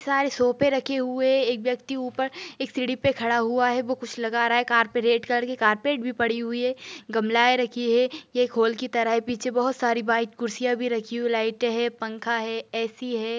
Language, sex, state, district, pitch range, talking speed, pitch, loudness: Hindi, female, Maharashtra, Dhule, 230-255 Hz, 235 wpm, 240 Hz, -24 LUFS